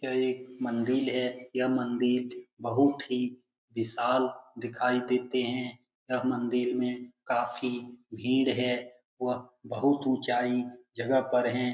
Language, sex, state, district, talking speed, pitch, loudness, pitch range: Hindi, male, Bihar, Lakhisarai, 125 wpm, 125 Hz, -30 LUFS, 125-130 Hz